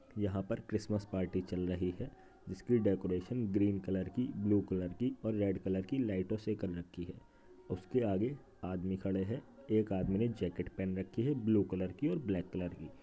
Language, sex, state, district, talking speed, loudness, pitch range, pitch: Hindi, male, Uttar Pradesh, Jyotiba Phule Nagar, 200 wpm, -37 LUFS, 95-110 Hz, 95 Hz